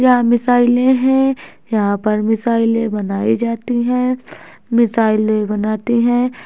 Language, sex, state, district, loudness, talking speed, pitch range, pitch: Hindi, female, Bihar, Muzaffarpur, -16 LUFS, 110 wpm, 215-245 Hz, 235 Hz